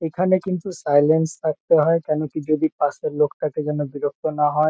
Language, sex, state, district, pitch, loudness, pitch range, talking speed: Bengali, male, West Bengal, Kolkata, 155 Hz, -21 LUFS, 150-160 Hz, 180 wpm